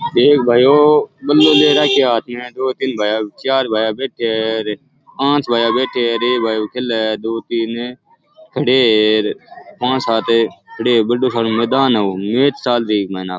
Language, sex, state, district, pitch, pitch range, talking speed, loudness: Rajasthani, male, Rajasthan, Churu, 120 Hz, 110-135 Hz, 205 wpm, -15 LUFS